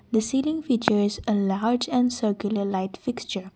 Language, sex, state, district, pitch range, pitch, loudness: English, female, Assam, Kamrup Metropolitan, 200-245 Hz, 220 Hz, -25 LUFS